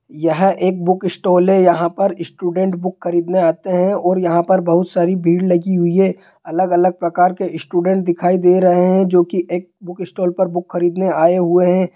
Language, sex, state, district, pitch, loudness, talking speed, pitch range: Hindi, male, Bihar, Jahanabad, 180 Hz, -16 LUFS, 200 wpm, 175-185 Hz